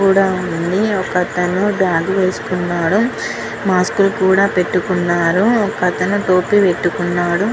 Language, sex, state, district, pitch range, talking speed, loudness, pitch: Telugu, female, Andhra Pradesh, Guntur, 180-200 Hz, 105 wpm, -16 LUFS, 185 Hz